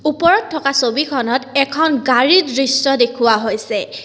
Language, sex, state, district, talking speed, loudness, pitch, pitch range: Assamese, female, Assam, Kamrup Metropolitan, 120 wpm, -15 LUFS, 270 Hz, 245-300 Hz